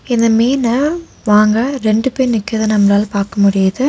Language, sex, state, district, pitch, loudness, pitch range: Tamil, female, Tamil Nadu, Nilgiris, 225 Hz, -14 LUFS, 210-255 Hz